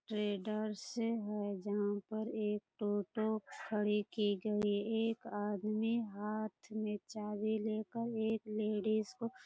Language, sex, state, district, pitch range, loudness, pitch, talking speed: Hindi, female, Bihar, Purnia, 210-220 Hz, -38 LUFS, 215 Hz, 120 wpm